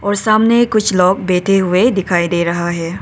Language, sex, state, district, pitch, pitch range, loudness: Hindi, female, Arunachal Pradesh, Papum Pare, 190 Hz, 175-210 Hz, -14 LUFS